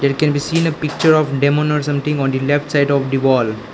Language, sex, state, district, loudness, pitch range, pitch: English, male, Arunachal Pradesh, Lower Dibang Valley, -16 LUFS, 135-150 Hz, 145 Hz